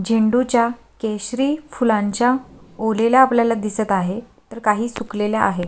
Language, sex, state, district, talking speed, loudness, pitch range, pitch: Marathi, female, Maharashtra, Sindhudurg, 125 wpm, -19 LUFS, 210-240 Hz, 225 Hz